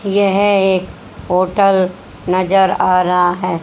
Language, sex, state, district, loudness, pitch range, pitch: Hindi, female, Haryana, Rohtak, -14 LUFS, 180-195 Hz, 185 Hz